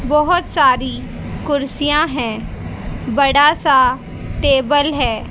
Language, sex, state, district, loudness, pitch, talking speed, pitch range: Hindi, female, Haryana, Rohtak, -15 LUFS, 285 Hz, 90 wpm, 265-300 Hz